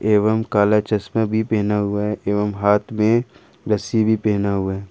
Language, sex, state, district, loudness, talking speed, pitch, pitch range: Hindi, male, Jharkhand, Ranchi, -19 LUFS, 185 wpm, 105 Hz, 105-110 Hz